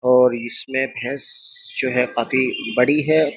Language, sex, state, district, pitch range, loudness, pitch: Hindi, male, Uttar Pradesh, Jyotiba Phule Nagar, 125-145 Hz, -20 LUFS, 130 Hz